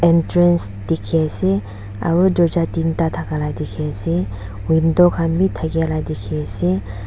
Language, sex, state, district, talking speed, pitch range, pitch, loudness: Nagamese, female, Nagaland, Dimapur, 110 wpm, 100-165 Hz, 155 Hz, -18 LUFS